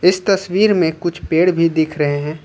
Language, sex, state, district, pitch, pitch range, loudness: Hindi, male, Uttar Pradesh, Lucknow, 170 Hz, 155-185 Hz, -16 LUFS